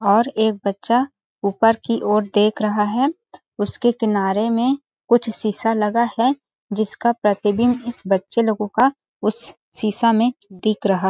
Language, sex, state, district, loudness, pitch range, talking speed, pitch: Hindi, female, Chhattisgarh, Balrampur, -20 LUFS, 205-240 Hz, 145 wpm, 220 Hz